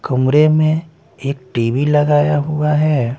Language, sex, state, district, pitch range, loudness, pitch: Hindi, male, Bihar, Patna, 135-150 Hz, -15 LUFS, 150 Hz